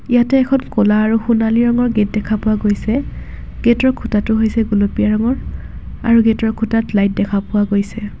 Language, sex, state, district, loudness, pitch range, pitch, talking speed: Assamese, female, Assam, Kamrup Metropolitan, -16 LUFS, 210-235 Hz, 220 Hz, 160 wpm